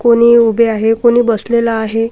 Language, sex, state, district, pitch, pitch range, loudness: Marathi, female, Maharashtra, Washim, 230 Hz, 225-235 Hz, -11 LUFS